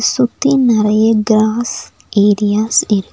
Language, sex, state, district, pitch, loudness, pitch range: Tamil, female, Tamil Nadu, Nilgiris, 220 Hz, -13 LUFS, 210-240 Hz